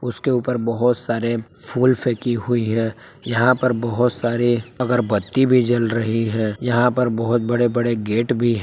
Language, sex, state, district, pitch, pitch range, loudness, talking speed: Hindi, male, Jharkhand, Palamu, 120 Hz, 115-125 Hz, -20 LUFS, 165 wpm